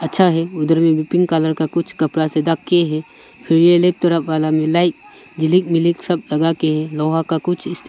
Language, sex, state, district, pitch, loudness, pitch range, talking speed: Hindi, male, Arunachal Pradesh, Longding, 165 Hz, -17 LUFS, 155-175 Hz, 200 wpm